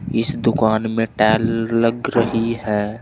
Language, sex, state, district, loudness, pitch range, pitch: Hindi, male, Uttar Pradesh, Saharanpur, -19 LUFS, 110-115 Hz, 115 Hz